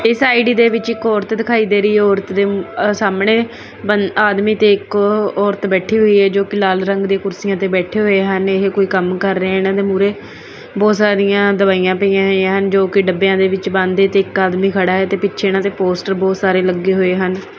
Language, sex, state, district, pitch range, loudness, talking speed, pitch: Punjabi, female, Punjab, Kapurthala, 190-205 Hz, -14 LUFS, 210 wpm, 195 Hz